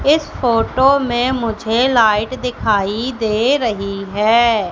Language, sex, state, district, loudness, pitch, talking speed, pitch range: Hindi, female, Madhya Pradesh, Katni, -16 LUFS, 230 Hz, 115 wpm, 215-255 Hz